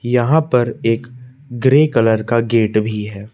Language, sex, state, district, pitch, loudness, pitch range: Hindi, male, Madhya Pradesh, Bhopal, 120 Hz, -16 LUFS, 110-125 Hz